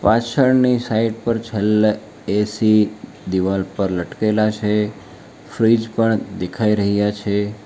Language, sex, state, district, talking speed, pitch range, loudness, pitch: Gujarati, male, Gujarat, Valsad, 110 wpm, 100-115 Hz, -19 LUFS, 105 Hz